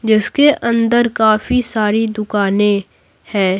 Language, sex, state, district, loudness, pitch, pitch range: Hindi, female, Bihar, Patna, -15 LUFS, 215 Hz, 210-235 Hz